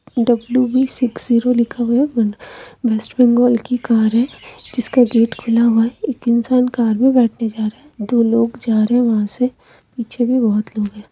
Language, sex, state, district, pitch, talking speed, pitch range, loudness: Hindi, female, West Bengal, Purulia, 235 Hz, 195 wpm, 225-250 Hz, -16 LUFS